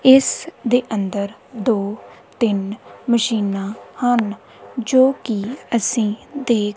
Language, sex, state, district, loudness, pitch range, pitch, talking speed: Punjabi, female, Punjab, Kapurthala, -20 LUFS, 205-245 Hz, 225 Hz, 95 wpm